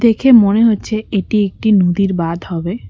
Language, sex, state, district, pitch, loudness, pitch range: Bengali, female, West Bengal, Cooch Behar, 200 Hz, -14 LUFS, 180-220 Hz